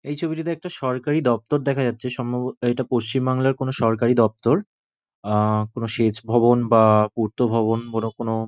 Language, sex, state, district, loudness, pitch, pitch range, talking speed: Bengali, male, West Bengal, North 24 Parganas, -21 LUFS, 120 Hz, 115-130 Hz, 165 wpm